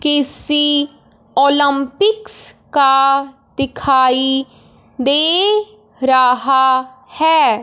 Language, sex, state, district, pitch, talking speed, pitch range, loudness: Hindi, female, Punjab, Fazilka, 275 Hz, 55 wpm, 265-300 Hz, -13 LUFS